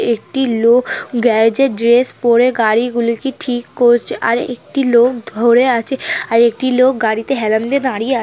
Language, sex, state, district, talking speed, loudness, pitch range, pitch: Bengali, female, West Bengal, North 24 Parganas, 170 wpm, -14 LUFS, 230-255 Hz, 240 Hz